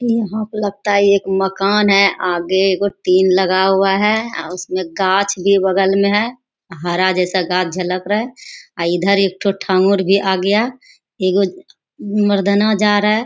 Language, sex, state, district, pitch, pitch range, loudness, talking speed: Hindi, female, Bihar, Bhagalpur, 195 Hz, 185-210 Hz, -16 LUFS, 180 wpm